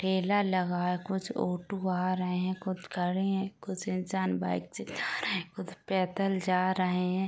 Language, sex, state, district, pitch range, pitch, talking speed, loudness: Hindi, female, Uttar Pradesh, Gorakhpur, 180-190 Hz, 185 Hz, 190 wpm, -31 LUFS